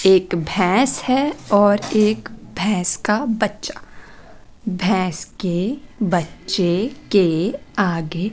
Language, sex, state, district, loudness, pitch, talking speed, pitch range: Hindi, female, Chandigarh, Chandigarh, -19 LUFS, 200 Hz, 100 wpm, 180-215 Hz